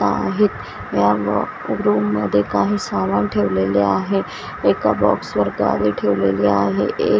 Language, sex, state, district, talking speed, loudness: Marathi, female, Maharashtra, Washim, 135 wpm, -18 LUFS